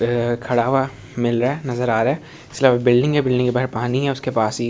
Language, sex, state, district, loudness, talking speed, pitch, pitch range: Hindi, male, Delhi, New Delhi, -19 LUFS, 255 wpm, 125 Hz, 120-135 Hz